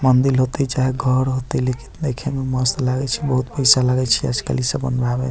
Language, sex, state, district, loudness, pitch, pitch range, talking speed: Bajjika, male, Bihar, Vaishali, -19 LUFS, 130 Hz, 130-135 Hz, 225 wpm